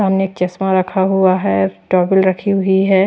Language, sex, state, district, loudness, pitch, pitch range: Hindi, female, Chhattisgarh, Raipur, -15 LUFS, 190 Hz, 185-195 Hz